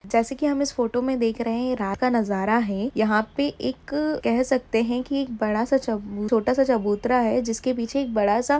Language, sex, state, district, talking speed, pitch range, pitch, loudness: Hindi, female, Jharkhand, Jamtara, 225 wpm, 220-265 Hz, 240 Hz, -23 LUFS